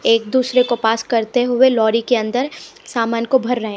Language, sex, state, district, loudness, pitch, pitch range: Hindi, female, Punjab, Pathankot, -17 LUFS, 240 Hz, 225-250 Hz